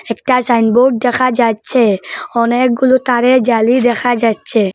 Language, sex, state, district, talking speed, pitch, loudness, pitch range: Bengali, female, Assam, Hailakandi, 125 wpm, 245 Hz, -12 LUFS, 230-255 Hz